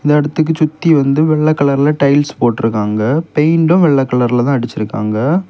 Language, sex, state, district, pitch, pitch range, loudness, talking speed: Tamil, male, Tamil Nadu, Kanyakumari, 145 Hz, 120-155 Hz, -13 LUFS, 130 wpm